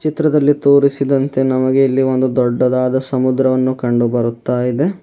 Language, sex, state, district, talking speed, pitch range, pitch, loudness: Kannada, male, Karnataka, Bidar, 95 wpm, 125-140 Hz, 130 Hz, -15 LUFS